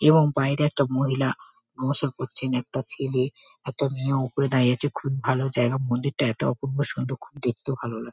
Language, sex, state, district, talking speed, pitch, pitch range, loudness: Bengali, female, West Bengal, Kolkata, 175 wpm, 135 Hz, 130-140 Hz, -25 LUFS